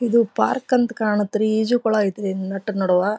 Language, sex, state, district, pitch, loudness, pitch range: Kannada, female, Karnataka, Dharwad, 215 Hz, -21 LUFS, 200-235 Hz